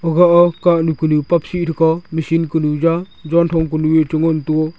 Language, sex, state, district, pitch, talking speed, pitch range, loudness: Wancho, male, Arunachal Pradesh, Longding, 165 Hz, 225 wpm, 155-170 Hz, -15 LUFS